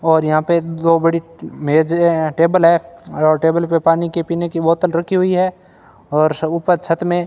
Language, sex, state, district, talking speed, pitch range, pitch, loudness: Hindi, male, Rajasthan, Bikaner, 205 wpm, 160-170 Hz, 165 Hz, -16 LUFS